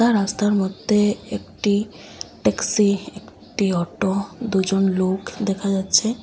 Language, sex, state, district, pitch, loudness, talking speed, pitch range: Bengali, female, Assam, Hailakandi, 200 Hz, -21 LUFS, 95 wpm, 195-210 Hz